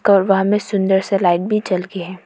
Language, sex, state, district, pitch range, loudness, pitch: Hindi, female, Arunachal Pradesh, Papum Pare, 185-200 Hz, -17 LUFS, 195 Hz